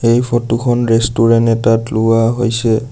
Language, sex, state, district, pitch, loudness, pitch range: Assamese, male, Assam, Sonitpur, 115 Hz, -13 LUFS, 115-120 Hz